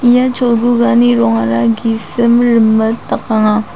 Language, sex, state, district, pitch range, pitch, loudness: Garo, female, Meghalaya, South Garo Hills, 210-240 Hz, 225 Hz, -12 LUFS